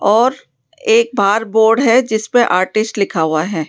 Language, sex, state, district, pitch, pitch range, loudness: Hindi, female, Rajasthan, Jaipur, 220 Hz, 200-245 Hz, -14 LUFS